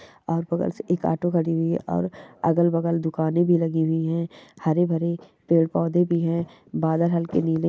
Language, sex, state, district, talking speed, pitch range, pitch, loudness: Hindi, male, Chhattisgarh, Bastar, 195 wpm, 160-170 Hz, 165 Hz, -23 LUFS